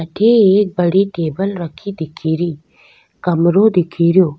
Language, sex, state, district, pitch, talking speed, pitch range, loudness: Rajasthani, female, Rajasthan, Nagaur, 175 Hz, 125 wpm, 165-200 Hz, -15 LUFS